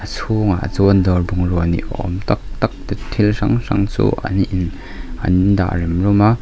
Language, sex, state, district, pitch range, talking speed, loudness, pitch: Mizo, male, Mizoram, Aizawl, 90-105 Hz, 195 wpm, -17 LUFS, 100 Hz